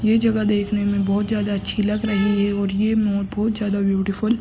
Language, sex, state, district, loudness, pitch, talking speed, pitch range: Hindi, male, Uttar Pradesh, Gorakhpur, -21 LUFS, 205 Hz, 230 wpm, 200-215 Hz